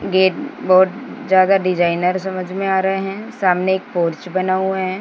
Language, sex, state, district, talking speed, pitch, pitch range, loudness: Hindi, female, Maharashtra, Gondia, 180 wpm, 185 Hz, 185-190 Hz, -17 LUFS